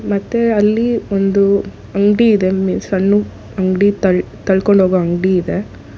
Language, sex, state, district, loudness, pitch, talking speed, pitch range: Kannada, female, Karnataka, Bangalore, -15 LUFS, 195 Hz, 120 wpm, 185-205 Hz